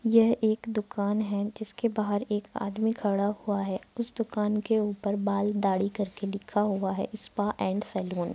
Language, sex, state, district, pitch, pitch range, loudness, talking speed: Hindi, female, Uttar Pradesh, Muzaffarnagar, 205 Hz, 200-220 Hz, -29 LUFS, 170 wpm